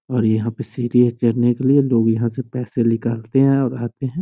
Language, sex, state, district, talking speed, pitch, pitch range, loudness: Hindi, male, Bihar, Sitamarhi, 225 wpm, 120 Hz, 115-130 Hz, -18 LUFS